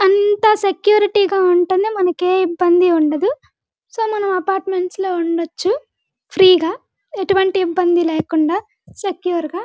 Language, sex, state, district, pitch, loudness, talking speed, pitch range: Telugu, female, Andhra Pradesh, Guntur, 375 Hz, -16 LUFS, 125 wpm, 350-400 Hz